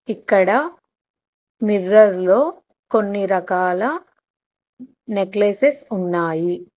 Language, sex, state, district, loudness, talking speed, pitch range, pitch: Telugu, female, Telangana, Hyderabad, -18 LUFS, 60 wpm, 190-255 Hz, 205 Hz